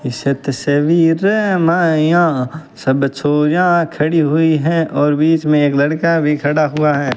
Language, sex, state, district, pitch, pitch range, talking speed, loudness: Hindi, male, Rajasthan, Bikaner, 155 Hz, 145-165 Hz, 115 wpm, -14 LUFS